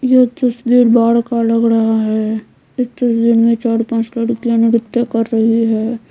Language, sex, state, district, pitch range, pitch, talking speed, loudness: Hindi, female, Bihar, Patna, 230-240 Hz, 230 Hz, 165 wpm, -14 LUFS